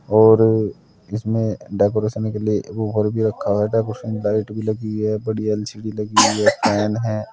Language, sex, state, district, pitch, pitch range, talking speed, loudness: Hindi, male, Uttar Pradesh, Saharanpur, 110 Hz, 105-110 Hz, 165 wpm, -19 LUFS